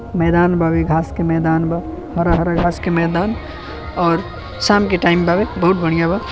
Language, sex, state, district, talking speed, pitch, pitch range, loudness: Bhojpuri, male, Uttar Pradesh, Deoria, 170 wpm, 170 Hz, 165-175 Hz, -17 LUFS